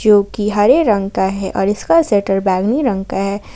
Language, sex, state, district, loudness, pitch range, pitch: Hindi, female, Jharkhand, Ranchi, -15 LUFS, 190-210 Hz, 200 Hz